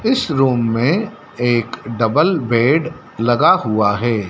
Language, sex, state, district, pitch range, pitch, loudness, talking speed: Hindi, male, Madhya Pradesh, Dhar, 115-160 Hz, 120 Hz, -16 LUFS, 125 wpm